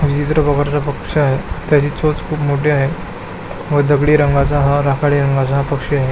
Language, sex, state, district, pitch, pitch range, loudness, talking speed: Marathi, male, Maharashtra, Pune, 145 Hz, 140-150 Hz, -15 LUFS, 165 wpm